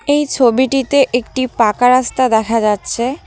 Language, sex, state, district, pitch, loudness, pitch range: Bengali, female, West Bengal, Cooch Behar, 255 Hz, -14 LUFS, 230-270 Hz